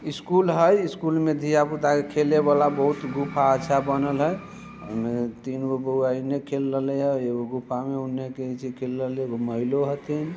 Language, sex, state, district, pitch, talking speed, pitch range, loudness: Hindi, male, Bihar, Muzaffarpur, 140 Hz, 195 wpm, 130-150 Hz, -24 LUFS